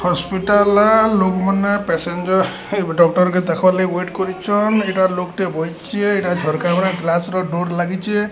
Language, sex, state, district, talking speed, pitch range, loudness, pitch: Odia, male, Odisha, Sambalpur, 150 wpm, 175-200 Hz, -17 LUFS, 185 Hz